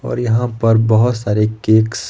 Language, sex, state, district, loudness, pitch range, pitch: Hindi, male, Himachal Pradesh, Shimla, -15 LUFS, 110-120 Hz, 110 Hz